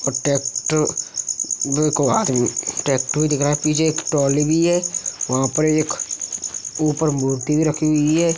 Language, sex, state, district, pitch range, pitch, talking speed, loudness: Hindi, male, Uttar Pradesh, Hamirpur, 140-155 Hz, 150 Hz, 135 wpm, -19 LUFS